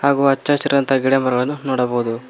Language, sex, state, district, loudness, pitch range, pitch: Kannada, male, Karnataka, Koppal, -17 LUFS, 125-140 Hz, 135 Hz